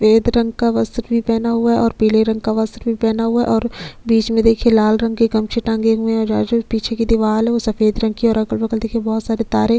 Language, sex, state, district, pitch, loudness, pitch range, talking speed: Hindi, female, Chhattisgarh, Sukma, 225 Hz, -17 LUFS, 220-230 Hz, 275 wpm